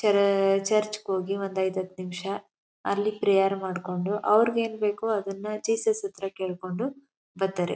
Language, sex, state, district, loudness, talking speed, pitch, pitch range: Kannada, female, Karnataka, Chamarajanagar, -27 LUFS, 140 wpm, 200 Hz, 190-215 Hz